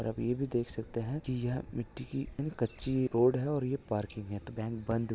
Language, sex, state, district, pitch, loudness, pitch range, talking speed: Hindi, male, Maharashtra, Solapur, 120 Hz, -34 LUFS, 115-135 Hz, 245 wpm